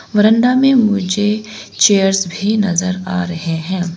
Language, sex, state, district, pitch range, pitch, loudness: Hindi, female, Arunachal Pradesh, Longding, 180-215 Hz, 195 Hz, -14 LUFS